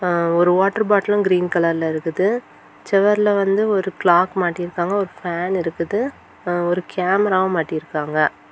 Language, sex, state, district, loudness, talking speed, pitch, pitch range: Tamil, female, Tamil Nadu, Kanyakumari, -19 LUFS, 125 wpm, 180 Hz, 170-195 Hz